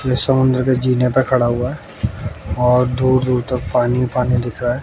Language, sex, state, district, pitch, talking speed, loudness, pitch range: Hindi, male, Bihar, West Champaran, 125 Hz, 210 wpm, -17 LUFS, 120-130 Hz